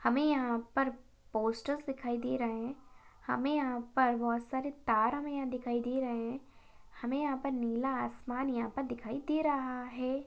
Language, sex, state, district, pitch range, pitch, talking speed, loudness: Hindi, female, Maharashtra, Sindhudurg, 240-270 Hz, 255 Hz, 185 wpm, -34 LUFS